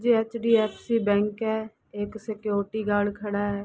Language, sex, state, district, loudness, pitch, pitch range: Hindi, female, Uttar Pradesh, Deoria, -26 LUFS, 215 Hz, 205-220 Hz